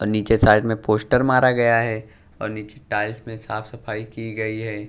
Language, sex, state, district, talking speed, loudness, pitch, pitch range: Hindi, male, Bihar, West Champaran, 210 wpm, -21 LUFS, 110 Hz, 105-115 Hz